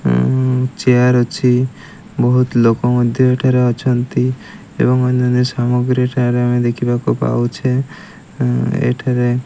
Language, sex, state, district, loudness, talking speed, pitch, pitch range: Odia, male, Odisha, Malkangiri, -15 LUFS, 100 wpm, 125 Hz, 120-125 Hz